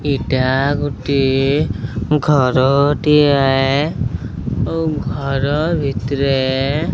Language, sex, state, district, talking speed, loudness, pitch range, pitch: Odia, male, Odisha, Sambalpur, 80 wpm, -16 LUFS, 135-150 Hz, 140 Hz